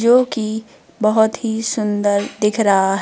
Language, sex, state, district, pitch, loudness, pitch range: Hindi, female, Rajasthan, Jaipur, 220 Hz, -17 LUFS, 205-225 Hz